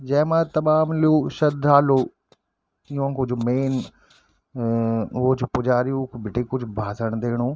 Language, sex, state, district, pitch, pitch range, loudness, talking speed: Garhwali, male, Uttarakhand, Tehri Garhwal, 130 Hz, 120-145 Hz, -22 LUFS, 125 wpm